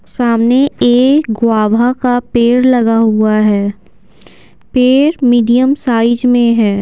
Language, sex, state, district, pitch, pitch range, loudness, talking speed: Hindi, female, Bihar, Patna, 240 Hz, 225-250 Hz, -11 LUFS, 115 wpm